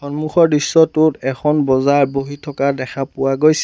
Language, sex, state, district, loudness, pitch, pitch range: Assamese, male, Assam, Sonitpur, -16 LUFS, 145 Hz, 135-155 Hz